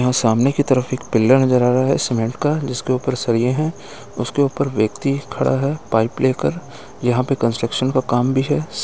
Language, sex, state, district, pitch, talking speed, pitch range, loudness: Hindi, male, Uttar Pradesh, Etah, 130 Hz, 205 wpm, 125-140 Hz, -18 LUFS